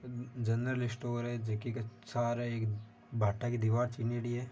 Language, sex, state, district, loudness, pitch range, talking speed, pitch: Marwari, male, Rajasthan, Nagaur, -36 LUFS, 115-120 Hz, 170 wpm, 120 Hz